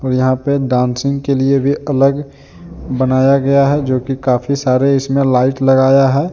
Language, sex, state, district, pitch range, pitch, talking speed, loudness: Hindi, male, Jharkhand, Deoghar, 130-140 Hz, 135 Hz, 170 wpm, -14 LUFS